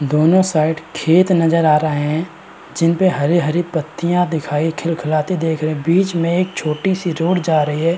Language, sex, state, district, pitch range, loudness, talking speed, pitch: Hindi, male, Uttar Pradesh, Varanasi, 155-175 Hz, -17 LUFS, 175 wpm, 165 Hz